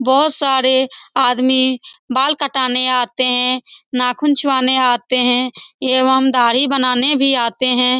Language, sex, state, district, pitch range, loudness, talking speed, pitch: Hindi, female, Bihar, Saran, 250-270 Hz, -13 LUFS, 125 wpm, 260 Hz